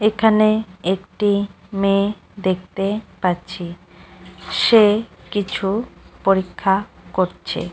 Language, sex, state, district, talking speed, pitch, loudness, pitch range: Bengali, female, West Bengal, North 24 Parganas, 80 wpm, 195 Hz, -20 LUFS, 185-215 Hz